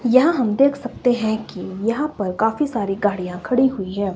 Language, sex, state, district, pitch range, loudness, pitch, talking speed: Hindi, female, Himachal Pradesh, Shimla, 200-260 Hz, -20 LUFS, 225 Hz, 200 wpm